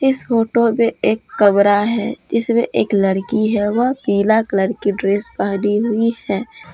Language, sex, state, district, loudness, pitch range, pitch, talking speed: Hindi, female, Jharkhand, Deoghar, -17 LUFS, 205-230 Hz, 220 Hz, 160 wpm